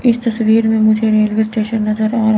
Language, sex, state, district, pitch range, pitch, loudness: Hindi, male, Chandigarh, Chandigarh, 215-225 Hz, 220 Hz, -14 LUFS